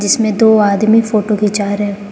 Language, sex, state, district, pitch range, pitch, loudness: Hindi, female, Arunachal Pradesh, Lower Dibang Valley, 205-220 Hz, 210 Hz, -12 LUFS